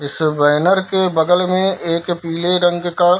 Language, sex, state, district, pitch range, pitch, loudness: Hindi, male, Bihar, Darbhanga, 165-180 Hz, 175 Hz, -16 LUFS